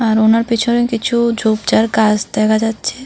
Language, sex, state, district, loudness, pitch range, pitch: Bengali, female, Tripura, South Tripura, -14 LUFS, 220-235 Hz, 225 Hz